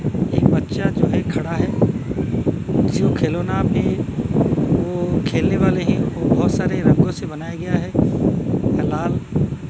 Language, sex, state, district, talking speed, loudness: Hindi, male, Odisha, Malkangiri, 140 wpm, -19 LUFS